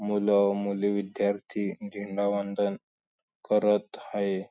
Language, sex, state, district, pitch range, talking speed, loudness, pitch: Marathi, male, Maharashtra, Sindhudurg, 100-105 Hz, 65 wpm, -28 LUFS, 100 Hz